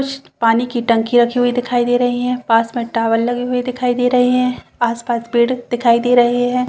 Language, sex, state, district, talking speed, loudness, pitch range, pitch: Hindi, female, Chhattisgarh, Balrampur, 225 wpm, -16 LUFS, 235-250 Hz, 245 Hz